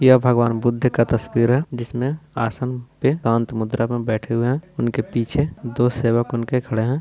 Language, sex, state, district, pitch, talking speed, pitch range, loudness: Hindi, male, Bihar, Purnia, 120 Hz, 190 wpm, 115-130 Hz, -21 LUFS